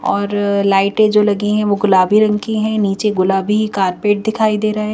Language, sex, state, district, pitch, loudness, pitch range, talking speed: Hindi, female, Madhya Pradesh, Bhopal, 210 Hz, -15 LUFS, 200-215 Hz, 195 wpm